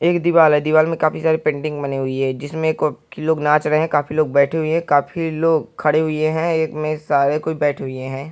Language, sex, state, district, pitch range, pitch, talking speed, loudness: Hindi, male, Uttar Pradesh, Hamirpur, 145-160 Hz, 155 Hz, 245 wpm, -18 LUFS